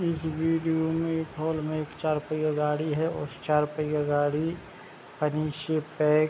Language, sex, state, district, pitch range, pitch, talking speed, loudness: Hindi, male, Bihar, Begusarai, 150-160 Hz, 155 Hz, 150 wpm, -28 LUFS